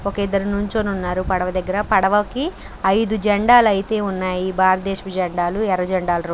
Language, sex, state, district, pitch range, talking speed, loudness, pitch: Telugu, female, Andhra Pradesh, Krishna, 185-210 Hz, 150 wpm, -19 LUFS, 195 Hz